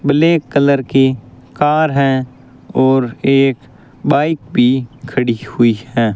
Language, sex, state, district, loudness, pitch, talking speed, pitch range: Hindi, male, Rajasthan, Bikaner, -14 LUFS, 130 Hz, 115 wpm, 125-140 Hz